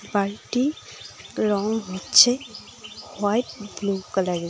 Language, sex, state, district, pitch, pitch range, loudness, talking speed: Bengali, female, West Bengal, Cooch Behar, 205 Hz, 195-230 Hz, -22 LUFS, 80 wpm